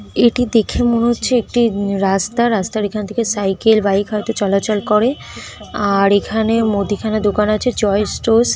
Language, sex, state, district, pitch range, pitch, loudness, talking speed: Bengali, female, West Bengal, North 24 Parganas, 200-230 Hz, 215 Hz, -16 LUFS, 155 wpm